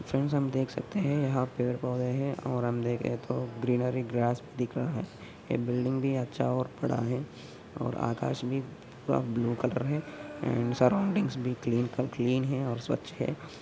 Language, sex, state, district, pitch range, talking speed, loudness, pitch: Hindi, male, Maharashtra, Aurangabad, 120-135 Hz, 180 wpm, -31 LUFS, 125 Hz